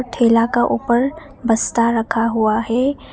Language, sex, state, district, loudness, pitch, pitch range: Hindi, female, Arunachal Pradesh, Papum Pare, -17 LUFS, 235 Hz, 230-250 Hz